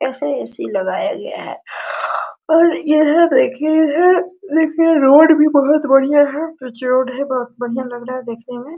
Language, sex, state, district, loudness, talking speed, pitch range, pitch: Hindi, female, Bihar, Araria, -15 LUFS, 165 wpm, 255-320 Hz, 290 Hz